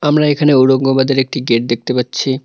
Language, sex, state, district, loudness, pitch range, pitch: Bengali, male, West Bengal, Cooch Behar, -13 LUFS, 125-145 Hz, 130 Hz